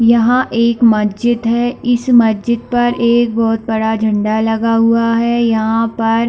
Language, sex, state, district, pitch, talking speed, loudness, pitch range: Hindi, female, Chhattisgarh, Bilaspur, 230 Hz, 155 wpm, -13 LUFS, 225-235 Hz